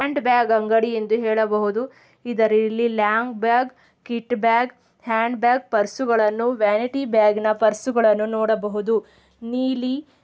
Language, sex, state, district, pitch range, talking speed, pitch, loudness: Kannada, female, Karnataka, Belgaum, 215-245 Hz, 60 wpm, 225 Hz, -21 LUFS